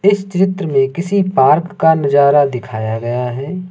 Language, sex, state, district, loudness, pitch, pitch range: Hindi, male, Uttar Pradesh, Lucknow, -14 LUFS, 145 Hz, 135-185 Hz